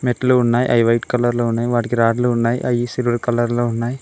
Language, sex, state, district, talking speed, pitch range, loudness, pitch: Telugu, male, Telangana, Mahabubabad, 195 wpm, 120-125 Hz, -18 LUFS, 120 Hz